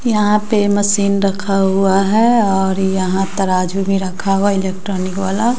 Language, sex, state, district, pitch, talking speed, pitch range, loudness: Hindi, female, Bihar, West Champaran, 195 Hz, 150 wpm, 190-205 Hz, -15 LUFS